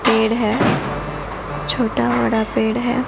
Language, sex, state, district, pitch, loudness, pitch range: Hindi, female, Odisha, Nuapada, 225 Hz, -19 LUFS, 220-240 Hz